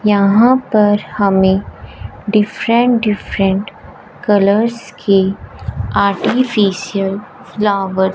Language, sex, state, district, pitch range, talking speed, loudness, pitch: Hindi, female, Punjab, Fazilka, 195-220 Hz, 75 wpm, -14 LUFS, 205 Hz